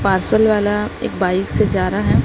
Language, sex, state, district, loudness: Hindi, female, Maharashtra, Gondia, -17 LUFS